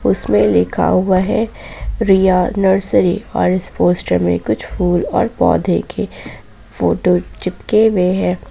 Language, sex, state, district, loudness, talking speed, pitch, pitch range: Hindi, female, Jharkhand, Ranchi, -15 LUFS, 135 wpm, 185 Hz, 150-195 Hz